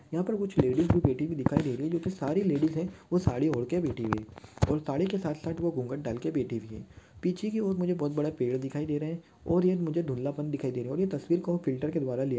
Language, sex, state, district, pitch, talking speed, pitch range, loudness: Hindi, male, Maharashtra, Solapur, 150 Hz, 290 wpm, 130-175 Hz, -30 LUFS